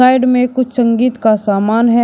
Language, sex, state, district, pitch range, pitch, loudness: Hindi, male, Uttar Pradesh, Shamli, 225-250 Hz, 240 Hz, -13 LUFS